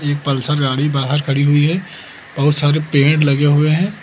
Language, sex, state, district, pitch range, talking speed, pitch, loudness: Hindi, male, Uttar Pradesh, Lucknow, 140-150 Hz, 180 wpm, 145 Hz, -15 LUFS